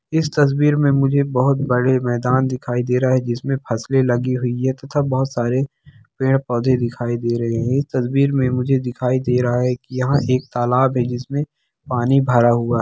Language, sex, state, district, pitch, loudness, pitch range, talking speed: Hindi, male, Bihar, Araria, 130 Hz, -19 LUFS, 125-135 Hz, 180 wpm